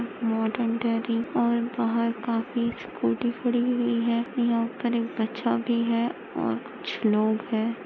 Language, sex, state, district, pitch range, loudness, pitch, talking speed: Hindi, female, Maharashtra, Pune, 230-235 Hz, -26 LUFS, 235 Hz, 145 wpm